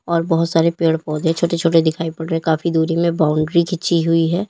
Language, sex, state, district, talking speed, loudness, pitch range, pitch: Hindi, female, Uttar Pradesh, Lalitpur, 225 wpm, -17 LUFS, 160-170 Hz, 165 Hz